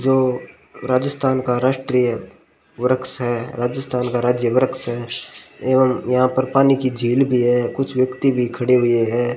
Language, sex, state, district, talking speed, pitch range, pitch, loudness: Hindi, male, Rajasthan, Bikaner, 160 wpm, 120-130 Hz, 125 Hz, -19 LUFS